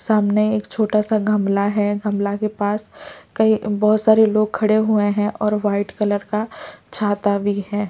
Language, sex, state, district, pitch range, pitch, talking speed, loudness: Hindi, male, Delhi, New Delhi, 205-215 Hz, 210 Hz, 175 wpm, -19 LUFS